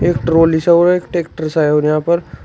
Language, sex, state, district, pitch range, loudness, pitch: Hindi, male, Uttar Pradesh, Shamli, 155-170 Hz, -14 LUFS, 165 Hz